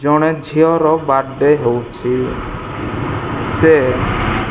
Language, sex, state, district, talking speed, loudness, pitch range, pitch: Odia, male, Odisha, Malkangiri, 95 wpm, -15 LUFS, 120-150 Hz, 130 Hz